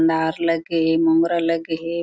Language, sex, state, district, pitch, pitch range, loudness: Chhattisgarhi, female, Chhattisgarh, Korba, 165 Hz, 160-165 Hz, -20 LUFS